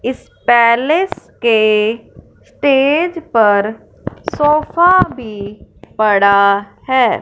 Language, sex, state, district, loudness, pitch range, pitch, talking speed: Hindi, male, Punjab, Fazilka, -13 LUFS, 210-300 Hz, 240 Hz, 75 wpm